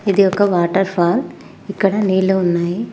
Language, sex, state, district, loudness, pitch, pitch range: Telugu, female, Telangana, Mahabubabad, -16 LUFS, 190 Hz, 175-200 Hz